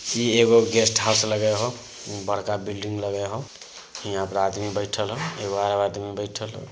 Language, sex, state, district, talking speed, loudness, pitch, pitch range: Magahi, male, Bihar, Samastipur, 180 wpm, -23 LUFS, 105 Hz, 100-115 Hz